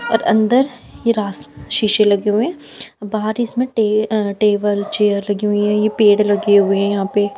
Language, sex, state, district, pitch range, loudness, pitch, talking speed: Hindi, female, Haryana, Jhajjar, 205-220 Hz, -16 LUFS, 210 Hz, 195 wpm